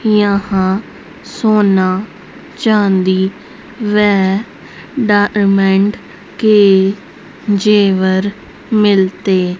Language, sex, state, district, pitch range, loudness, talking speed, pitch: Hindi, female, Haryana, Rohtak, 190-210 Hz, -13 LUFS, 55 wpm, 200 Hz